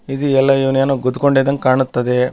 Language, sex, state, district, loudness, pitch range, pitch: Kannada, male, Karnataka, Bellary, -15 LUFS, 130-135 Hz, 135 Hz